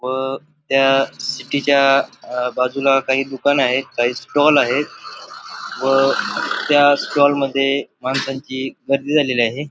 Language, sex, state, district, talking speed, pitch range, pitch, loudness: Marathi, male, Maharashtra, Pune, 115 wpm, 130-140 Hz, 135 Hz, -17 LUFS